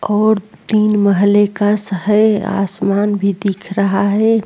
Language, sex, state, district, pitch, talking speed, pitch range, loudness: Hindi, female, Uttar Pradesh, Jalaun, 205 Hz, 135 wpm, 200-210 Hz, -15 LUFS